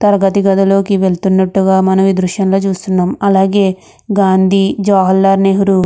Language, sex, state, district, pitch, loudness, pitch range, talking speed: Telugu, female, Andhra Pradesh, Krishna, 195 Hz, -12 LUFS, 190-195 Hz, 115 wpm